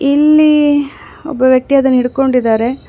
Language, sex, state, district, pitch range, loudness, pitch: Kannada, female, Karnataka, Bangalore, 255-290 Hz, -11 LUFS, 275 Hz